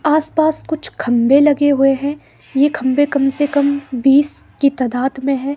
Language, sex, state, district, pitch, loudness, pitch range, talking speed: Hindi, female, Himachal Pradesh, Shimla, 280 Hz, -16 LUFS, 270-290 Hz, 185 wpm